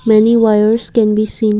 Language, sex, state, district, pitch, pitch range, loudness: English, female, Assam, Kamrup Metropolitan, 215 Hz, 215-225 Hz, -12 LUFS